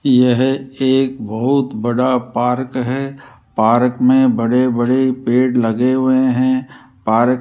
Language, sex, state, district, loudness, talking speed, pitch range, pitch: Hindi, male, Rajasthan, Jaipur, -15 LUFS, 130 wpm, 120-130 Hz, 125 Hz